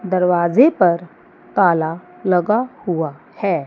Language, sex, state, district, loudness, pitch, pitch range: Hindi, female, Chandigarh, Chandigarh, -18 LUFS, 180 Hz, 170-200 Hz